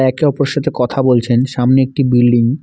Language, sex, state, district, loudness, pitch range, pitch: Bengali, male, West Bengal, Alipurduar, -13 LUFS, 125-140 Hz, 130 Hz